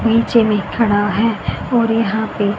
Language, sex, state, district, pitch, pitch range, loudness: Hindi, female, Haryana, Rohtak, 225 Hz, 205-230 Hz, -16 LUFS